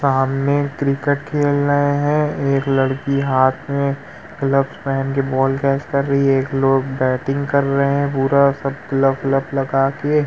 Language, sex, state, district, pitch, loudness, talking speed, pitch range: Hindi, male, Uttar Pradesh, Muzaffarnagar, 140 Hz, -18 LUFS, 165 wpm, 135-140 Hz